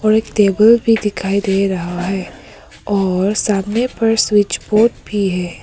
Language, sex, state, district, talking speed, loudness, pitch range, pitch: Hindi, female, Arunachal Pradesh, Papum Pare, 160 wpm, -15 LUFS, 195-220 Hz, 205 Hz